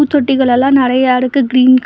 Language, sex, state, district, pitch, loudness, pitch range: Tamil, female, Tamil Nadu, Nilgiris, 260 Hz, -11 LUFS, 255-270 Hz